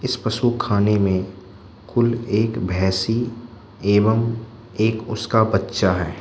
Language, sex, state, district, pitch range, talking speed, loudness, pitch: Hindi, male, Manipur, Imphal West, 95-115 Hz, 115 wpm, -20 LUFS, 110 Hz